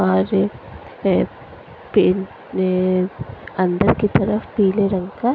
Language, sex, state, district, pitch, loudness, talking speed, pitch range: Hindi, female, Punjab, Fazilka, 185 Hz, -19 LUFS, 110 wpm, 160-200 Hz